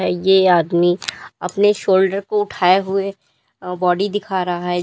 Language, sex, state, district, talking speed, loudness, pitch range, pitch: Hindi, female, Uttar Pradesh, Lalitpur, 135 wpm, -17 LUFS, 175-195 Hz, 185 Hz